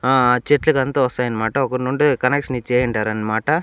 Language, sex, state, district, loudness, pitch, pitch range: Telugu, male, Andhra Pradesh, Annamaya, -18 LUFS, 125 Hz, 125-140 Hz